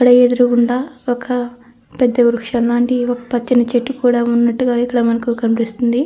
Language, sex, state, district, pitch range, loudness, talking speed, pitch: Telugu, female, Andhra Pradesh, Krishna, 235-245 Hz, -15 LUFS, 120 wpm, 245 Hz